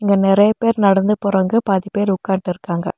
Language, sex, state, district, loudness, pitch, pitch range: Tamil, female, Tamil Nadu, Nilgiris, -16 LUFS, 195 Hz, 190-205 Hz